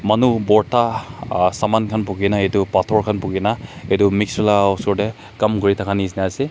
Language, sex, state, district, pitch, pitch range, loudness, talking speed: Nagamese, male, Nagaland, Kohima, 105 Hz, 100-110 Hz, -18 LUFS, 200 wpm